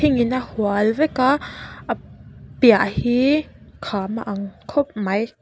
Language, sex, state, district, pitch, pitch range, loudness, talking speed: Mizo, female, Mizoram, Aizawl, 235 Hz, 205-275 Hz, -20 LUFS, 165 wpm